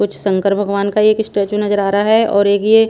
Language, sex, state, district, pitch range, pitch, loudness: Hindi, female, Punjab, Pathankot, 200-215 Hz, 205 Hz, -14 LUFS